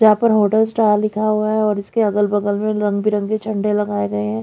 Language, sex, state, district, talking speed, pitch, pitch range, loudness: Hindi, female, Haryana, Jhajjar, 245 wpm, 210 Hz, 205-215 Hz, -17 LUFS